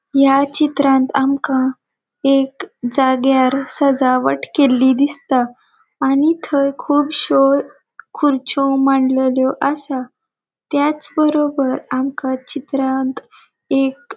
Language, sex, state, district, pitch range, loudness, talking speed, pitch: Konkani, female, Goa, North and South Goa, 260-290 Hz, -16 LUFS, 85 wpm, 275 Hz